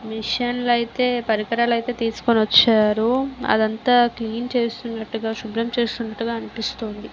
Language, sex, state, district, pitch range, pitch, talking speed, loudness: Telugu, female, Andhra Pradesh, Visakhapatnam, 220-240 Hz, 230 Hz, 110 wpm, -21 LUFS